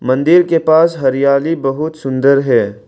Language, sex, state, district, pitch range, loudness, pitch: Hindi, male, Arunachal Pradesh, Lower Dibang Valley, 135-160 Hz, -13 LUFS, 140 Hz